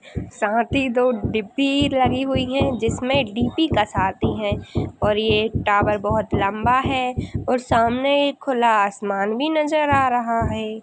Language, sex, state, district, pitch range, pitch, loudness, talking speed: Hindi, female, Bihar, Jamui, 220-270 Hz, 245 Hz, -20 LUFS, 145 wpm